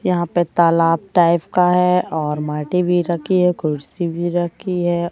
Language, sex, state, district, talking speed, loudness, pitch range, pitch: Hindi, female, Madhya Pradesh, Katni, 175 wpm, -18 LUFS, 165-180 Hz, 175 Hz